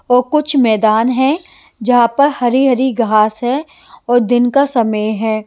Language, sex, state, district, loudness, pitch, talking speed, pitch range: Hindi, female, Haryana, Jhajjar, -13 LUFS, 245 Hz, 155 wpm, 220-265 Hz